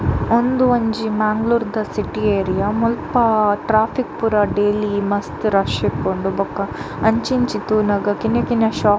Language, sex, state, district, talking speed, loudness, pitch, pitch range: Tulu, female, Karnataka, Dakshina Kannada, 140 wpm, -18 LUFS, 215 Hz, 205-230 Hz